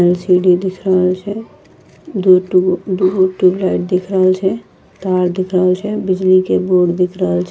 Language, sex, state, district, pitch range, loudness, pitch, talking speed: Angika, female, Bihar, Bhagalpur, 180-190 Hz, -14 LUFS, 185 Hz, 160 wpm